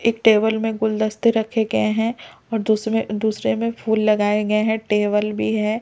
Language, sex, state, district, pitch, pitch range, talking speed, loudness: Hindi, male, Delhi, New Delhi, 220 Hz, 210-220 Hz, 175 wpm, -20 LUFS